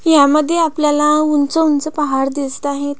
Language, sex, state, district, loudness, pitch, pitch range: Marathi, female, Maharashtra, Pune, -15 LUFS, 295 Hz, 285-305 Hz